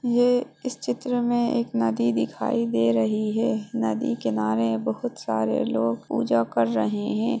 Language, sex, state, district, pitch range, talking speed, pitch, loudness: Hindi, female, Bihar, Jahanabad, 110-120 Hz, 155 wpm, 115 Hz, -24 LUFS